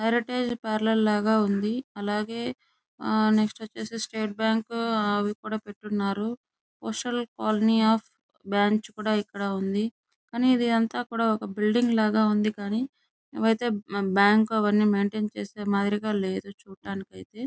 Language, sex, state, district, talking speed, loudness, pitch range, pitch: Telugu, female, Andhra Pradesh, Chittoor, 125 wpm, -26 LUFS, 205-230 Hz, 215 Hz